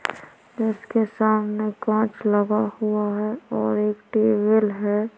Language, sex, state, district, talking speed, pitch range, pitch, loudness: Hindi, female, Chhattisgarh, Korba, 115 wpm, 210-220 Hz, 215 Hz, -22 LUFS